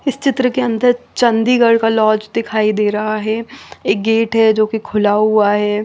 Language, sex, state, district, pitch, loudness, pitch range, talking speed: Hindi, female, Chandigarh, Chandigarh, 220 Hz, -15 LUFS, 215-235 Hz, 195 wpm